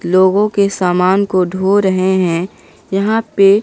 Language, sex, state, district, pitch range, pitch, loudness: Hindi, female, Bihar, Katihar, 185-200 Hz, 190 Hz, -14 LUFS